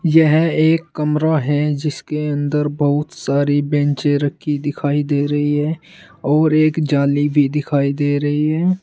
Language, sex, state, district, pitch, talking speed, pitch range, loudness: Hindi, male, Uttar Pradesh, Saharanpur, 150 Hz, 150 wpm, 145-155 Hz, -17 LUFS